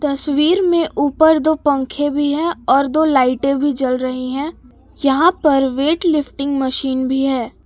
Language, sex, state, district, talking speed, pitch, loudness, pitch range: Hindi, female, Jharkhand, Palamu, 165 wpm, 285 Hz, -16 LUFS, 270-315 Hz